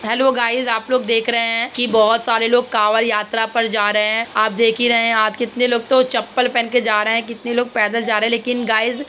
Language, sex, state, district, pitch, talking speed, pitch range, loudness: Hindi, female, Uttar Pradesh, Muzaffarnagar, 230 Hz, 270 wpm, 225-245 Hz, -16 LUFS